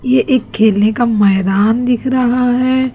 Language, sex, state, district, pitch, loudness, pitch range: Hindi, female, Chhattisgarh, Raipur, 245 Hz, -13 LUFS, 215-255 Hz